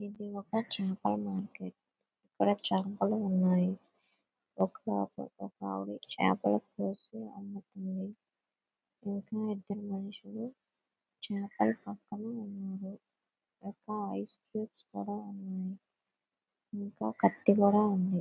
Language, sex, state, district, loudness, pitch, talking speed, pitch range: Telugu, female, Andhra Pradesh, Visakhapatnam, -34 LUFS, 200 Hz, 85 wpm, 180-205 Hz